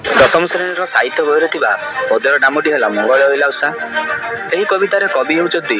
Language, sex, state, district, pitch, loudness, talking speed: Odia, male, Odisha, Malkangiri, 180 Hz, -13 LUFS, 155 wpm